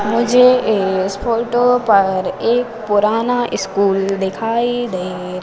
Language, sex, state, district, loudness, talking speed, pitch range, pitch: Hindi, female, Madhya Pradesh, Umaria, -16 LUFS, 100 wpm, 195-240 Hz, 220 Hz